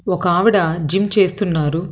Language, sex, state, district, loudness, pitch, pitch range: Telugu, female, Telangana, Hyderabad, -16 LUFS, 180 Hz, 165-200 Hz